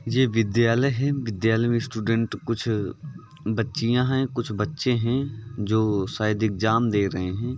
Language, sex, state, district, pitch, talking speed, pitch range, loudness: Hindi, male, Uttar Pradesh, Varanasi, 115 Hz, 145 wpm, 110-125 Hz, -24 LUFS